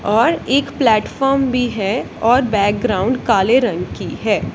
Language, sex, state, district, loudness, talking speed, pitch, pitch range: Hindi, female, Punjab, Kapurthala, -16 LUFS, 145 wpm, 245 Hz, 215-260 Hz